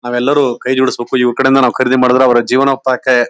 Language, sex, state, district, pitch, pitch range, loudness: Kannada, male, Karnataka, Bijapur, 130 Hz, 120-130 Hz, -12 LUFS